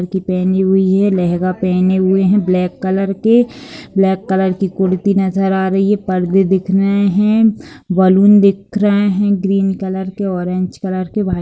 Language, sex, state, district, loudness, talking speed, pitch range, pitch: Hindi, female, Bihar, Lakhisarai, -14 LUFS, 185 wpm, 185-200 Hz, 190 Hz